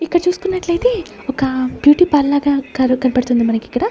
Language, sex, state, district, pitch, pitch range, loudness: Telugu, female, Andhra Pradesh, Sri Satya Sai, 285 Hz, 255-345 Hz, -16 LUFS